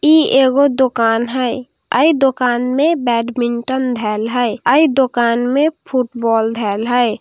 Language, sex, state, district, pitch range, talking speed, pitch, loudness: Hindi, female, Bihar, Darbhanga, 235-270 Hz, 140 wpm, 250 Hz, -15 LUFS